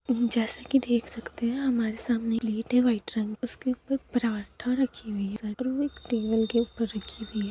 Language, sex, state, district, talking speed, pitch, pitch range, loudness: Hindi, female, Jharkhand, Sahebganj, 190 wpm, 235 Hz, 220-250 Hz, -28 LUFS